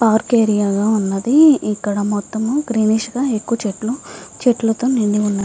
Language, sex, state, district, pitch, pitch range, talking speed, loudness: Telugu, female, Andhra Pradesh, Visakhapatnam, 220 Hz, 210-240 Hz, 155 wpm, -17 LUFS